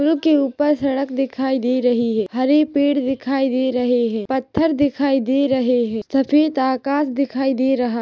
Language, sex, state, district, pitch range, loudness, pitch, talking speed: Hindi, female, Chhattisgarh, Rajnandgaon, 255-285 Hz, -18 LUFS, 265 Hz, 180 wpm